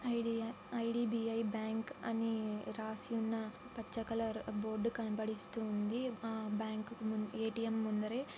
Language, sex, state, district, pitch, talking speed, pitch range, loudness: Telugu, female, Andhra Pradesh, Anantapur, 225 Hz, 115 wpm, 220-230 Hz, -39 LUFS